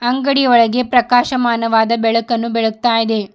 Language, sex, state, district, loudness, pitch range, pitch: Kannada, female, Karnataka, Bidar, -14 LUFS, 225-245 Hz, 235 Hz